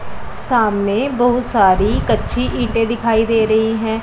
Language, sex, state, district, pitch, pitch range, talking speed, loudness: Hindi, female, Punjab, Pathankot, 225 Hz, 220-235 Hz, 135 wpm, -16 LUFS